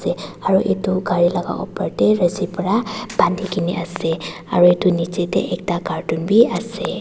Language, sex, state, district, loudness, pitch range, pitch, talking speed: Nagamese, female, Nagaland, Dimapur, -19 LUFS, 175-190 Hz, 180 Hz, 155 wpm